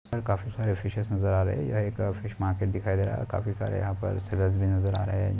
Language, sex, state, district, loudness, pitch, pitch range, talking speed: Hindi, male, Maharashtra, Pune, -29 LUFS, 100 Hz, 95-105 Hz, 280 wpm